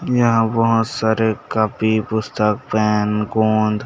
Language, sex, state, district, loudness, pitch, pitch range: Hindi, male, Chhattisgarh, Bastar, -18 LUFS, 110 Hz, 105-115 Hz